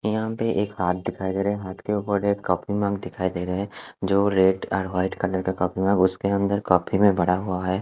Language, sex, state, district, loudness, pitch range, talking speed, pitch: Hindi, male, Punjab, Fazilka, -24 LUFS, 95-100 Hz, 255 wpm, 95 Hz